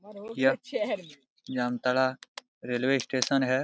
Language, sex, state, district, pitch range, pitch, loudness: Hindi, male, Jharkhand, Jamtara, 125-200 Hz, 130 Hz, -29 LUFS